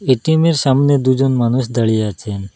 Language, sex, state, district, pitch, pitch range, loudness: Bengali, male, Assam, Hailakandi, 130 Hz, 110-140 Hz, -15 LUFS